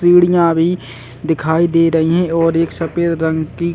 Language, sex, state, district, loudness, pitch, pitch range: Hindi, male, Chhattisgarh, Bastar, -15 LUFS, 165 Hz, 160-170 Hz